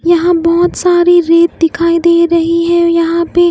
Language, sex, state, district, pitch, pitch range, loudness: Hindi, female, Himachal Pradesh, Shimla, 340 Hz, 335-345 Hz, -10 LUFS